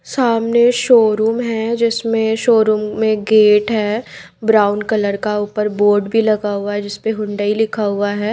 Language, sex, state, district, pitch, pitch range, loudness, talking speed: Hindi, female, Maharashtra, Mumbai Suburban, 215 Hz, 205-225 Hz, -15 LUFS, 160 wpm